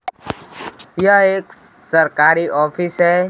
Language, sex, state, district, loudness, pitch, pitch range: Hindi, male, Bihar, Kaimur, -15 LUFS, 175 Hz, 160-190 Hz